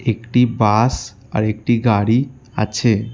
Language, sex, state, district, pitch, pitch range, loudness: Bengali, male, West Bengal, Alipurduar, 115 Hz, 110-125 Hz, -17 LUFS